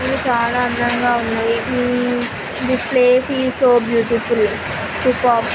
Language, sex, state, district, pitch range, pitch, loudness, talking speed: Telugu, female, Andhra Pradesh, Krishna, 235-255 Hz, 245 Hz, -17 LUFS, 130 wpm